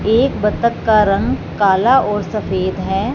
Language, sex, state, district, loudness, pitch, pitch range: Hindi, male, Punjab, Fazilka, -16 LUFS, 210 Hz, 195-220 Hz